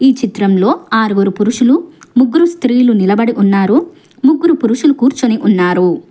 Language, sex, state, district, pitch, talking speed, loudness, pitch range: Telugu, female, Telangana, Hyderabad, 240 Hz, 120 wpm, -12 LUFS, 205-275 Hz